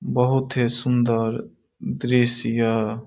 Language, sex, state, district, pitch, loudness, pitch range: Maithili, male, Bihar, Saharsa, 120 Hz, -22 LUFS, 115-125 Hz